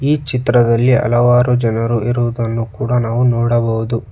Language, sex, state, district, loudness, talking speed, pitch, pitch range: Kannada, male, Karnataka, Bangalore, -15 LUFS, 115 wpm, 120 Hz, 115-125 Hz